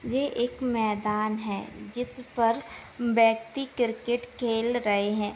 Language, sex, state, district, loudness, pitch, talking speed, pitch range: Hindi, female, Uttar Pradesh, Jyotiba Phule Nagar, -27 LUFS, 235 Hz, 110 wpm, 215-245 Hz